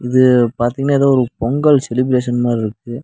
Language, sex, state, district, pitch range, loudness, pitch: Tamil, male, Tamil Nadu, Nilgiris, 120-135 Hz, -15 LUFS, 125 Hz